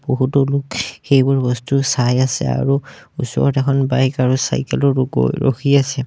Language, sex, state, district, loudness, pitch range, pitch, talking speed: Assamese, male, Assam, Sonitpur, -17 LUFS, 130-140 Hz, 135 Hz, 170 wpm